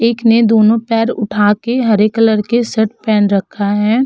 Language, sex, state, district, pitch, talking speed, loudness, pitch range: Hindi, female, Uttar Pradesh, Hamirpur, 220 Hz, 190 wpm, -13 LUFS, 210-230 Hz